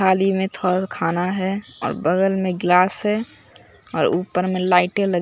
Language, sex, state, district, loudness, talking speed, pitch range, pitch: Hindi, male, Bihar, Katihar, -20 LUFS, 170 wpm, 180-195 Hz, 185 Hz